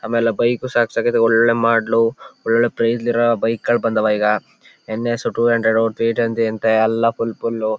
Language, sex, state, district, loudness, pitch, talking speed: Kannada, male, Karnataka, Chamarajanagar, -18 LUFS, 115 Hz, 155 wpm